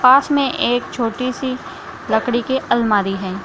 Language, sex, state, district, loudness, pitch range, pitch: Hindi, female, Bihar, Samastipur, -18 LUFS, 220-260 Hz, 245 Hz